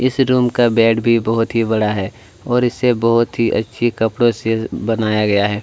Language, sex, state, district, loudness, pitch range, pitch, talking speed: Hindi, male, Chhattisgarh, Kabirdham, -16 LUFS, 110-120 Hz, 115 Hz, 200 wpm